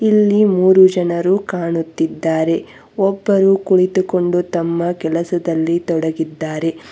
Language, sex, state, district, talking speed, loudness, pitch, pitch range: Kannada, female, Karnataka, Bangalore, 80 wpm, -16 LUFS, 175 Hz, 165-190 Hz